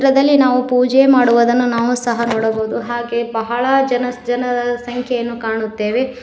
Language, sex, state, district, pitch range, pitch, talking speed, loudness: Kannada, female, Karnataka, Koppal, 235-250 Hz, 245 Hz, 125 wpm, -16 LUFS